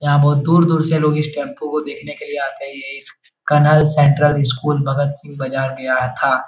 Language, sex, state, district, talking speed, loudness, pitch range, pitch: Hindi, male, Bihar, Jahanabad, 215 wpm, -16 LUFS, 135-150 Hz, 145 Hz